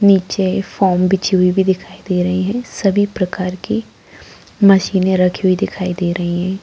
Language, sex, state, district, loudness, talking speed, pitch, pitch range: Hindi, female, Bihar, Darbhanga, -16 LUFS, 180 wpm, 190 Hz, 180-195 Hz